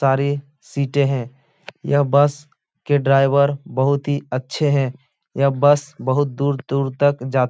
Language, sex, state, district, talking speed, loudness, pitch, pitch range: Hindi, male, Uttar Pradesh, Etah, 145 wpm, -19 LUFS, 140 Hz, 135-145 Hz